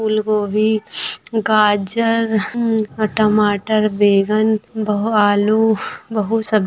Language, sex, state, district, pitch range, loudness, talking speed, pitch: Hindi, female, Bihar, Bhagalpur, 210-220 Hz, -17 LUFS, 80 wpm, 215 Hz